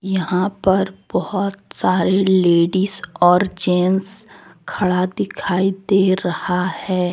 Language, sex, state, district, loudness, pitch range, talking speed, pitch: Hindi, female, Jharkhand, Deoghar, -18 LUFS, 180-195 Hz, 100 wpm, 185 Hz